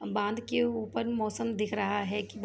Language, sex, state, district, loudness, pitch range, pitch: Hindi, female, Jharkhand, Sahebganj, -31 LUFS, 205-230 Hz, 215 Hz